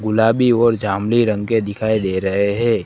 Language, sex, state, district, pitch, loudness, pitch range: Hindi, male, Gujarat, Gandhinagar, 110 Hz, -17 LUFS, 100-115 Hz